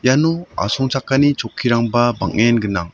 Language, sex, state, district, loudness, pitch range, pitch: Garo, male, Meghalaya, South Garo Hills, -17 LUFS, 115-135 Hz, 120 Hz